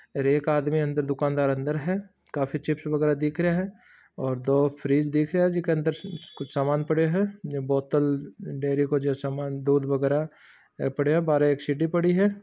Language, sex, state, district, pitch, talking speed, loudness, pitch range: Marwari, male, Rajasthan, Churu, 150 Hz, 190 wpm, -26 LUFS, 140-160 Hz